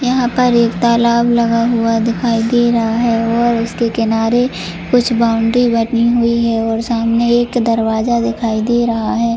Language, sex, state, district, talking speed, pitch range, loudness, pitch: Hindi, female, Jharkhand, Jamtara, 165 wpm, 225-240 Hz, -14 LUFS, 235 Hz